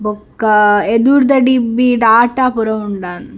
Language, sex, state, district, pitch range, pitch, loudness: Tulu, female, Karnataka, Dakshina Kannada, 210-250 Hz, 225 Hz, -12 LUFS